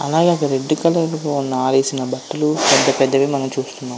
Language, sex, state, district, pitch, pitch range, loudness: Telugu, male, Andhra Pradesh, Visakhapatnam, 140 Hz, 135-155 Hz, -17 LUFS